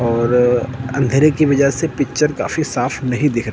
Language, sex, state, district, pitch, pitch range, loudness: Hindi, male, Chandigarh, Chandigarh, 135 Hz, 125-150 Hz, -16 LUFS